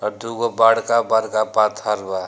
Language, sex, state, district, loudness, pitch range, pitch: Bhojpuri, male, Bihar, Gopalganj, -19 LUFS, 105-115 Hz, 110 Hz